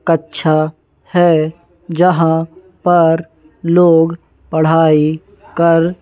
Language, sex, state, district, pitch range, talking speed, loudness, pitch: Hindi, male, Madhya Pradesh, Bhopal, 160-175 Hz, 70 wpm, -13 LUFS, 165 Hz